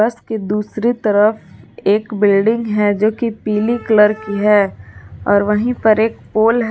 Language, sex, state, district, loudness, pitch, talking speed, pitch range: Hindi, female, Jharkhand, Garhwa, -15 LUFS, 215 Hz, 160 wpm, 205-225 Hz